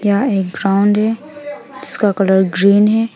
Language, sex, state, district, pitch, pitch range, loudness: Hindi, female, West Bengal, Alipurduar, 205 Hz, 195-225 Hz, -14 LUFS